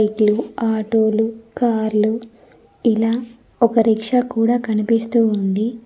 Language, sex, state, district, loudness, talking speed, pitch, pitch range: Telugu, female, Telangana, Mahabubabad, -18 LUFS, 80 wpm, 225 Hz, 220-235 Hz